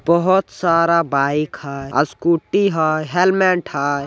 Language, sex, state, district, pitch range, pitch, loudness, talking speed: Magahi, male, Bihar, Jamui, 145-180 Hz, 165 Hz, -17 LUFS, 135 wpm